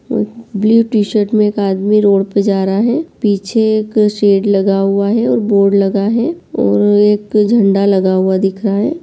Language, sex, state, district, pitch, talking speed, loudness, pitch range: Hindi, male, Bihar, Kishanganj, 205 Hz, 185 wpm, -13 LUFS, 195-220 Hz